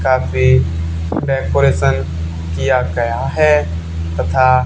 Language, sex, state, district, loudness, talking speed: Hindi, male, Haryana, Charkhi Dadri, -16 LUFS, 90 wpm